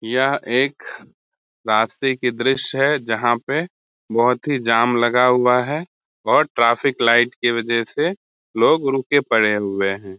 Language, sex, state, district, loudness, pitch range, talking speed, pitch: Hindi, male, Bihar, Muzaffarpur, -18 LUFS, 115-135 Hz, 145 wpm, 120 Hz